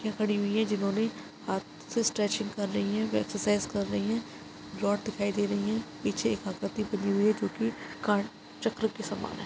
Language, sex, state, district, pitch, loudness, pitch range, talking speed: Hindi, female, Chhattisgarh, Kabirdham, 205 Hz, -31 LUFS, 200-215 Hz, 210 wpm